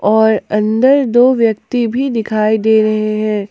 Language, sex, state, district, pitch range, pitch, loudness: Hindi, female, Jharkhand, Palamu, 215-240 Hz, 220 Hz, -13 LUFS